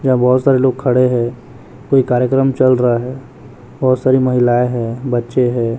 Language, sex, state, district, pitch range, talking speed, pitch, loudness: Hindi, male, Chhattisgarh, Raipur, 120-130 Hz, 175 wpm, 125 Hz, -14 LUFS